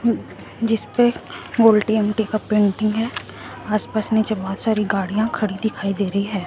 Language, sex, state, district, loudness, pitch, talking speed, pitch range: Hindi, female, Chhattisgarh, Raipur, -20 LUFS, 215 Hz, 160 wpm, 200-220 Hz